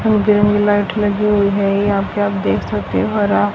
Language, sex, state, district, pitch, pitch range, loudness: Hindi, female, Haryana, Rohtak, 205 Hz, 195-210 Hz, -16 LUFS